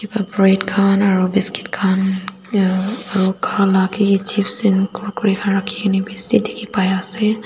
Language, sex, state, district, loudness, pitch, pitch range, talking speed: Nagamese, female, Nagaland, Dimapur, -17 LUFS, 200 Hz, 190-210 Hz, 175 wpm